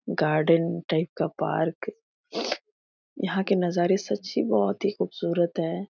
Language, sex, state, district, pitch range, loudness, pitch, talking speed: Hindi, female, Bihar, Jahanabad, 165-190 Hz, -26 LUFS, 175 Hz, 120 wpm